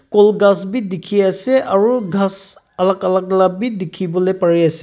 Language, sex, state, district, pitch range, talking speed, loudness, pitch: Nagamese, male, Nagaland, Kohima, 185-205 Hz, 185 wpm, -16 LUFS, 195 Hz